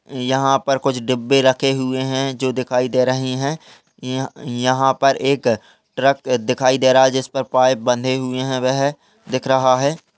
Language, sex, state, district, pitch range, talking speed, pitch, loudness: Hindi, male, Uttar Pradesh, Muzaffarnagar, 130-135 Hz, 185 wpm, 130 Hz, -18 LUFS